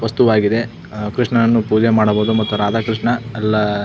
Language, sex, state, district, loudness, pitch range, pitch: Kannada, male, Karnataka, Belgaum, -16 LUFS, 105-115 Hz, 110 Hz